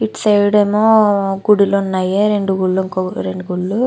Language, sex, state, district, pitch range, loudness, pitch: Telugu, female, Andhra Pradesh, Chittoor, 185-210 Hz, -15 LUFS, 195 Hz